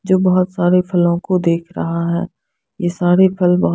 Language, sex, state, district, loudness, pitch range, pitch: Hindi, female, Punjab, Fazilka, -16 LUFS, 170-185 Hz, 180 Hz